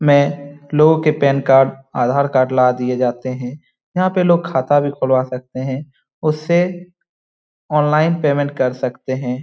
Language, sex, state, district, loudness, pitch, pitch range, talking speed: Hindi, male, Bihar, Lakhisarai, -17 LUFS, 140 Hz, 130-150 Hz, 160 wpm